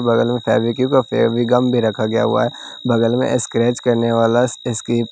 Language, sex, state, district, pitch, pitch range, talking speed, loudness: Hindi, male, Bihar, West Champaran, 120 Hz, 115-125 Hz, 185 wpm, -17 LUFS